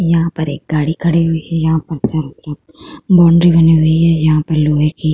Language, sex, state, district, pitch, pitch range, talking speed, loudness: Hindi, female, Uttar Pradesh, Hamirpur, 160 Hz, 155-170 Hz, 235 wpm, -13 LUFS